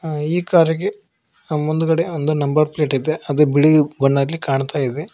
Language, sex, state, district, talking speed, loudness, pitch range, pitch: Kannada, male, Karnataka, Koppal, 140 wpm, -18 LUFS, 145-160 Hz, 155 Hz